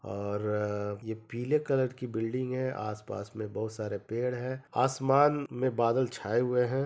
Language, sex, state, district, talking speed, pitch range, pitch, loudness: Hindi, male, Jharkhand, Sahebganj, 165 wpm, 105-130 Hz, 120 Hz, -31 LUFS